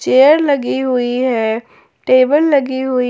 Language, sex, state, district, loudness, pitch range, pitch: Hindi, female, Jharkhand, Ranchi, -14 LUFS, 250-280 Hz, 260 Hz